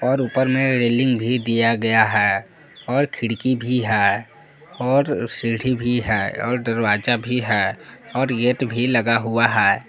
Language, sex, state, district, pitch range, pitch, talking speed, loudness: Hindi, male, Jharkhand, Palamu, 115-125 Hz, 120 Hz, 160 wpm, -19 LUFS